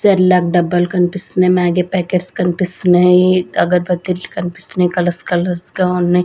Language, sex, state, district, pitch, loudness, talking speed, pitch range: Telugu, female, Andhra Pradesh, Sri Satya Sai, 180 Hz, -15 LUFS, 115 wpm, 175-185 Hz